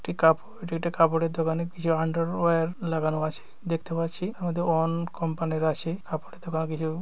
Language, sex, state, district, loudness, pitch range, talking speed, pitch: Bengali, male, West Bengal, Dakshin Dinajpur, -27 LUFS, 160-170 Hz, 180 wpm, 165 Hz